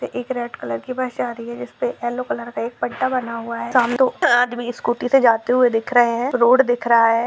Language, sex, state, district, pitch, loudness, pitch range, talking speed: Hindi, male, Maharashtra, Solapur, 240 Hz, -19 LUFS, 235-255 Hz, 255 wpm